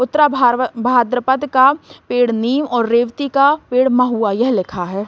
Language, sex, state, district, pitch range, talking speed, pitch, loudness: Hindi, female, Bihar, Saran, 235-275 Hz, 175 wpm, 250 Hz, -15 LUFS